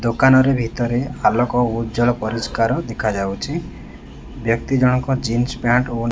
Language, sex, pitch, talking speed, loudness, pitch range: Odia, male, 120 Hz, 115 wpm, -19 LUFS, 115-125 Hz